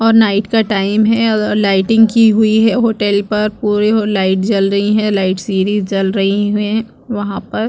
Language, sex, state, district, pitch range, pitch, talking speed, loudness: Hindi, female, Chhattisgarh, Bastar, 200-220 Hz, 210 Hz, 195 wpm, -13 LUFS